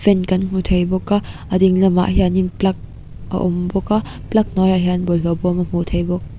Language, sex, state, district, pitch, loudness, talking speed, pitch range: Mizo, female, Mizoram, Aizawl, 185 Hz, -18 LUFS, 225 wpm, 180-190 Hz